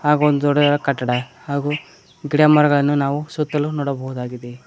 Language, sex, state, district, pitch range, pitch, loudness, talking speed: Kannada, male, Karnataka, Koppal, 135-150 Hz, 145 Hz, -19 LUFS, 115 wpm